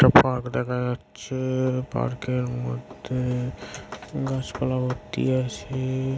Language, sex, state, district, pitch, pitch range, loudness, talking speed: Bengali, male, West Bengal, Paschim Medinipur, 125 Hz, 120-130 Hz, -26 LUFS, 95 wpm